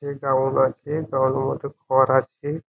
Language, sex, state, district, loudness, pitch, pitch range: Bengali, male, West Bengal, Jhargram, -22 LUFS, 135 Hz, 130-145 Hz